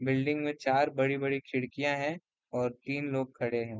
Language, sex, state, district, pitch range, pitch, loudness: Hindi, male, Bihar, Gopalganj, 125-145 Hz, 135 Hz, -32 LUFS